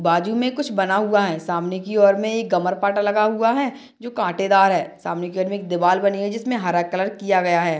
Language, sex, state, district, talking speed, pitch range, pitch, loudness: Hindi, female, Maharashtra, Dhule, 245 wpm, 180-215 Hz, 200 Hz, -20 LUFS